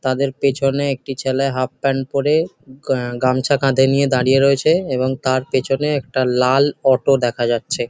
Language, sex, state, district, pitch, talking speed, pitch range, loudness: Bengali, male, West Bengal, Jhargram, 135 Hz, 160 wpm, 130-140 Hz, -17 LUFS